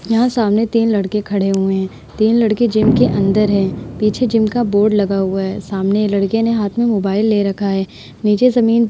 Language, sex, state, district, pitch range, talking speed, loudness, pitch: Hindi, female, Uttar Pradesh, Hamirpur, 195-225 Hz, 215 wpm, -15 LUFS, 210 Hz